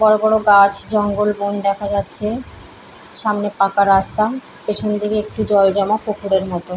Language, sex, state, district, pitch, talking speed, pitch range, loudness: Bengali, female, West Bengal, Paschim Medinipur, 205 Hz, 140 wpm, 200-215 Hz, -16 LUFS